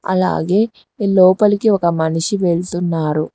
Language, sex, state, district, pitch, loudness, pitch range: Telugu, female, Telangana, Hyderabad, 185 Hz, -16 LUFS, 165-205 Hz